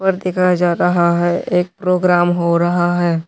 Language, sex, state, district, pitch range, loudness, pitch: Hindi, male, Tripura, West Tripura, 175-180 Hz, -15 LUFS, 175 Hz